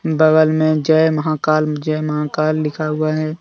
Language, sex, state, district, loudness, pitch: Hindi, male, Jharkhand, Deoghar, -16 LUFS, 155 Hz